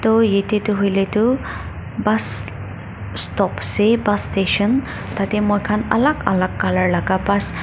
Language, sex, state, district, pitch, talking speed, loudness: Nagamese, female, Nagaland, Dimapur, 200 Hz, 150 wpm, -19 LUFS